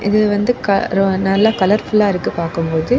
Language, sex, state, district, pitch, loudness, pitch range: Tamil, female, Tamil Nadu, Kanyakumari, 200 Hz, -16 LUFS, 190-215 Hz